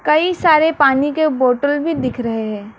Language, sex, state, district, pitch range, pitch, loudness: Hindi, female, West Bengal, Alipurduar, 245-310 Hz, 285 Hz, -16 LUFS